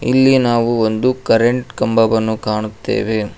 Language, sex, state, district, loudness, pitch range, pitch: Kannada, male, Karnataka, Koppal, -15 LUFS, 110-125 Hz, 115 Hz